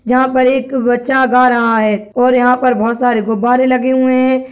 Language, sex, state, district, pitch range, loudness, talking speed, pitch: Hindi, male, Bihar, Jahanabad, 245-260 Hz, -12 LUFS, 210 wpm, 250 Hz